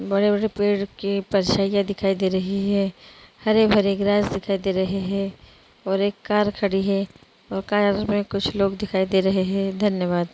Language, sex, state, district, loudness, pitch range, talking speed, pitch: Hindi, female, Chhattisgarh, Bilaspur, -22 LUFS, 195-205 Hz, 170 wpm, 195 Hz